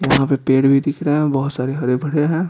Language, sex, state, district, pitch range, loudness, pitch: Hindi, male, Bihar, Patna, 135-150 Hz, -17 LUFS, 140 Hz